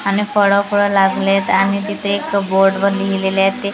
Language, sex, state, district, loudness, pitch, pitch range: Marathi, female, Maharashtra, Gondia, -15 LUFS, 200 Hz, 195-200 Hz